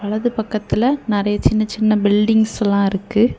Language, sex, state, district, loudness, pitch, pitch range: Tamil, female, Tamil Nadu, Kanyakumari, -17 LUFS, 215 Hz, 205-220 Hz